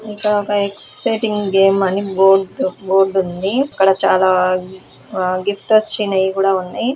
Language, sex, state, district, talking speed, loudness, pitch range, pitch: Telugu, female, Andhra Pradesh, Krishna, 120 wpm, -16 LUFS, 190-210 Hz, 195 Hz